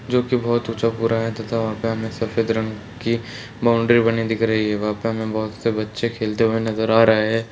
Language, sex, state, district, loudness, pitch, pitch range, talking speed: Hindi, male, Bihar, Purnia, -21 LUFS, 115 Hz, 110-115 Hz, 245 wpm